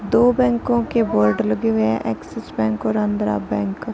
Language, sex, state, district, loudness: Hindi, female, Uttar Pradesh, Hamirpur, -20 LUFS